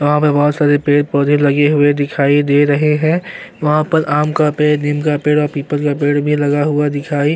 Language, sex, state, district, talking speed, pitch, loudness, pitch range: Hindi, male, Uttarakhand, Tehri Garhwal, 235 wpm, 145 Hz, -14 LUFS, 145-150 Hz